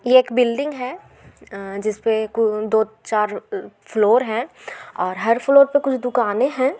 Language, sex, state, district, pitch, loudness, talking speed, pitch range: Hindi, female, Bihar, Gaya, 235 Hz, -19 LUFS, 160 wpm, 215-260 Hz